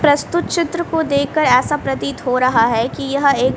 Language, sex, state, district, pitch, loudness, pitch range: Hindi, female, Haryana, Rohtak, 275 Hz, -17 LUFS, 250-315 Hz